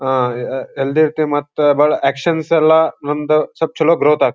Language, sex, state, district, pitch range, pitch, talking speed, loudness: Kannada, male, Karnataka, Dharwad, 140-160 Hz, 150 Hz, 180 wpm, -15 LUFS